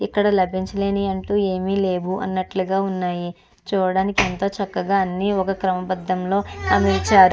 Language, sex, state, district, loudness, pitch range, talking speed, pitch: Telugu, female, Andhra Pradesh, Chittoor, -21 LUFS, 185-195 Hz, 125 wpm, 190 Hz